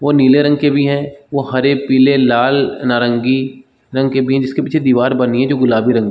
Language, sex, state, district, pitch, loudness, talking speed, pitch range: Hindi, male, Chhattisgarh, Balrampur, 135 Hz, -14 LUFS, 215 wpm, 125-140 Hz